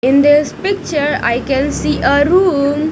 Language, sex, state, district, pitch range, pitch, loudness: English, female, Punjab, Kapurthala, 275-315 Hz, 290 Hz, -14 LUFS